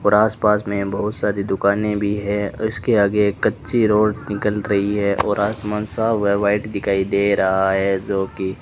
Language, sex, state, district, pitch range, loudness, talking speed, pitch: Hindi, male, Rajasthan, Bikaner, 100-105 Hz, -19 LUFS, 195 wpm, 100 Hz